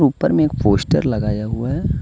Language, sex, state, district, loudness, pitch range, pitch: Hindi, male, Jharkhand, Deoghar, -18 LUFS, 105-150 Hz, 130 Hz